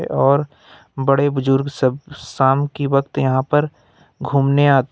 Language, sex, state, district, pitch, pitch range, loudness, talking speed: Hindi, male, Jharkhand, Ranchi, 140 Hz, 135-145 Hz, -18 LUFS, 135 wpm